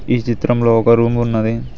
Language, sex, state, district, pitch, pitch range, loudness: Telugu, male, Telangana, Mahabubabad, 115 Hz, 115-120 Hz, -15 LUFS